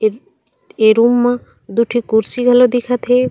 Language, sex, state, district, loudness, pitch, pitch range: Chhattisgarhi, female, Chhattisgarh, Raigarh, -14 LUFS, 245 Hz, 225-245 Hz